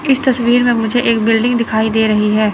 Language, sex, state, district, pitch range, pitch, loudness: Hindi, female, Chandigarh, Chandigarh, 220-245 Hz, 230 Hz, -13 LUFS